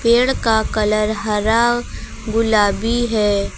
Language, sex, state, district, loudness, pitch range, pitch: Hindi, female, Uttar Pradesh, Lucknow, -17 LUFS, 210-235 Hz, 220 Hz